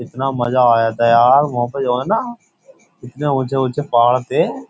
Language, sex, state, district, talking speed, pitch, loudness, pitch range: Hindi, male, Uttar Pradesh, Jyotiba Phule Nagar, 190 wpm, 130 Hz, -16 LUFS, 120-145 Hz